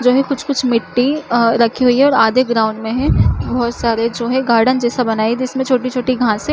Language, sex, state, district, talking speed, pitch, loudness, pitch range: Chhattisgarhi, female, Chhattisgarh, Jashpur, 220 wpm, 245 Hz, -15 LUFS, 230-255 Hz